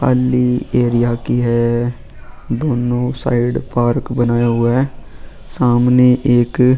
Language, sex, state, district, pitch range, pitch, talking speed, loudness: Hindi, male, Goa, North and South Goa, 120-125 Hz, 120 Hz, 105 wpm, -15 LUFS